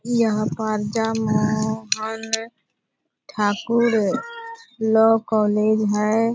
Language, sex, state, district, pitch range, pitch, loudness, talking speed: Hindi, female, Bihar, Purnia, 215-230 Hz, 220 Hz, -21 LUFS, 65 wpm